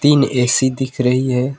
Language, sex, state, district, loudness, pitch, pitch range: Hindi, male, West Bengal, Alipurduar, -16 LUFS, 130 Hz, 125-135 Hz